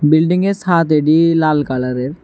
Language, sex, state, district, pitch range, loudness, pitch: Bengali, male, Tripura, West Tripura, 150-165 Hz, -14 LUFS, 155 Hz